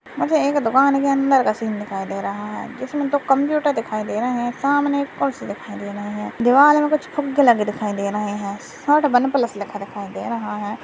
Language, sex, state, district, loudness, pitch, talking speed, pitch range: Hindi, male, Maharashtra, Dhule, -20 LUFS, 240 Hz, 215 wpm, 205-280 Hz